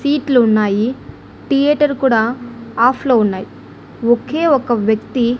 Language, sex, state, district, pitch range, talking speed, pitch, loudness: Telugu, female, Andhra Pradesh, Annamaya, 230-275 Hz, 110 wpm, 245 Hz, -15 LUFS